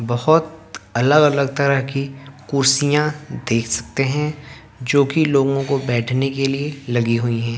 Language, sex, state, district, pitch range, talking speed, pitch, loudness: Hindi, male, Haryana, Jhajjar, 125-145 Hz, 140 wpm, 135 Hz, -18 LUFS